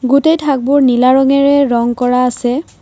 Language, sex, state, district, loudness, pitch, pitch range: Assamese, female, Assam, Kamrup Metropolitan, -12 LUFS, 260 Hz, 250-280 Hz